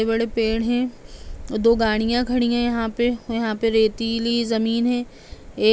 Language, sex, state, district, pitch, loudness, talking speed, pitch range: Hindi, female, Uttar Pradesh, Jalaun, 230 Hz, -21 LUFS, 190 wpm, 225-240 Hz